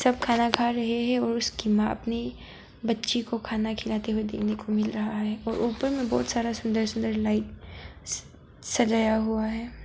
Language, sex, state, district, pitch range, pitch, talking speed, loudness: Hindi, female, Arunachal Pradesh, Papum Pare, 215-235 Hz, 225 Hz, 190 wpm, -27 LUFS